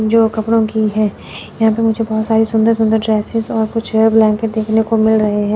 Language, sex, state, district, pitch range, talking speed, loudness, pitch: Hindi, female, Chandigarh, Chandigarh, 220-225 Hz, 215 wpm, -14 LUFS, 220 Hz